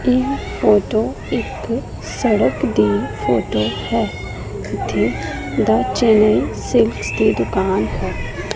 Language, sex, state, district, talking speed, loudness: Punjabi, female, Punjab, Pathankot, 100 wpm, -18 LUFS